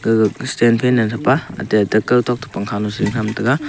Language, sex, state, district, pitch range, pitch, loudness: Wancho, male, Arunachal Pradesh, Longding, 110-125 Hz, 115 Hz, -17 LUFS